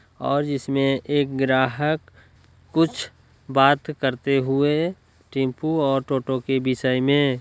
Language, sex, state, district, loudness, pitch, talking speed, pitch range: Hindi, male, Bihar, Lakhisarai, -22 LUFS, 135 Hz, 115 wpm, 130-145 Hz